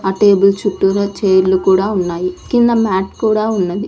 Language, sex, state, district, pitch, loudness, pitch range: Telugu, female, Andhra Pradesh, Sri Satya Sai, 195 Hz, -14 LUFS, 190-210 Hz